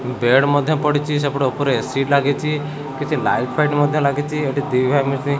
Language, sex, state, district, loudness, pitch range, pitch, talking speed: Odia, male, Odisha, Khordha, -18 LUFS, 135-150 Hz, 140 Hz, 175 wpm